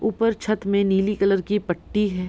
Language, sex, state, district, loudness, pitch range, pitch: Hindi, female, Bihar, Madhepura, -22 LUFS, 195-210 Hz, 200 Hz